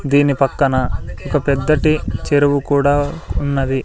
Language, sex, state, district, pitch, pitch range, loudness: Telugu, male, Andhra Pradesh, Sri Satya Sai, 140 Hz, 140-145 Hz, -17 LUFS